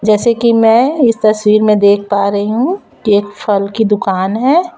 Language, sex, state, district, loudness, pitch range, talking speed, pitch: Hindi, female, Chhattisgarh, Raipur, -12 LUFS, 205-235 Hz, 200 wpm, 215 Hz